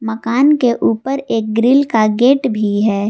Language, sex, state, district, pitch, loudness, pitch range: Hindi, female, Jharkhand, Garhwa, 230 Hz, -14 LUFS, 215-265 Hz